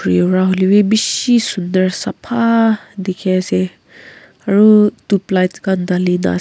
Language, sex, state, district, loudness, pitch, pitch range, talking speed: Nagamese, female, Nagaland, Kohima, -14 LUFS, 190 Hz, 185-210 Hz, 120 wpm